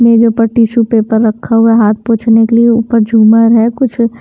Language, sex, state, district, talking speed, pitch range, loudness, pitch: Hindi, female, Himachal Pradesh, Shimla, 230 wpm, 225-230 Hz, -9 LUFS, 230 Hz